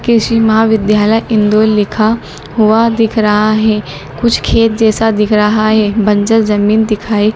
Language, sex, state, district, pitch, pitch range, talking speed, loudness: Hindi, male, Madhya Pradesh, Dhar, 215 Hz, 210-225 Hz, 140 wpm, -11 LUFS